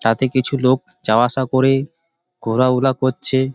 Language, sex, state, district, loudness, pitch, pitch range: Bengali, male, West Bengal, Malda, -17 LUFS, 130 Hz, 130-135 Hz